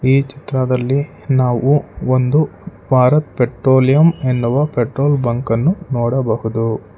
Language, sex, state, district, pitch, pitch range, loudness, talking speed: Kannada, male, Karnataka, Bangalore, 130 Hz, 120-140 Hz, -16 LUFS, 85 wpm